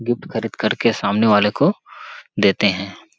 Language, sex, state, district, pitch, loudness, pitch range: Hindi, male, Chhattisgarh, Sarguja, 105 Hz, -18 LUFS, 100-105 Hz